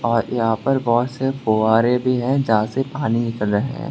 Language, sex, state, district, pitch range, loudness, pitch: Hindi, male, Tripura, West Tripura, 110-135 Hz, -19 LUFS, 120 Hz